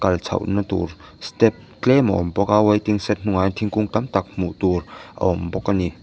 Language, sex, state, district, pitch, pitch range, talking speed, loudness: Mizo, male, Mizoram, Aizawl, 95 Hz, 90-105 Hz, 230 wpm, -21 LUFS